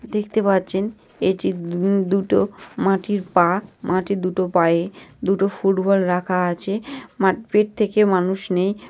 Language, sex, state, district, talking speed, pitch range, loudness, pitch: Bengali, female, West Bengal, North 24 Parganas, 130 wpm, 185-205 Hz, -20 LUFS, 195 Hz